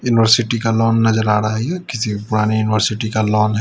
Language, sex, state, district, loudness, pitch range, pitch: Hindi, male, Delhi, New Delhi, -16 LUFS, 110-115 Hz, 110 Hz